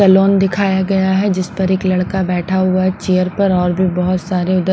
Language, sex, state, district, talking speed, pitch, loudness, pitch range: Hindi, female, Punjab, Pathankot, 215 wpm, 185 Hz, -15 LUFS, 185-195 Hz